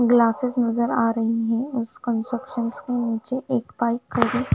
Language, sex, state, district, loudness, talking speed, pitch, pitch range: Hindi, female, Punjab, Fazilka, -23 LUFS, 160 wpm, 235 Hz, 230-245 Hz